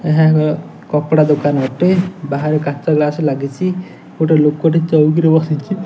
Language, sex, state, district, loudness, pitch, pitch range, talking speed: Odia, male, Odisha, Nuapada, -15 LUFS, 155 Hz, 150-160 Hz, 145 wpm